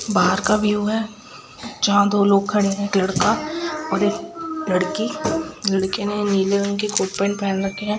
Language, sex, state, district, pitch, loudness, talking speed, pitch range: Hindi, female, Bihar, Gopalganj, 205 Hz, -20 LUFS, 180 wpm, 195-215 Hz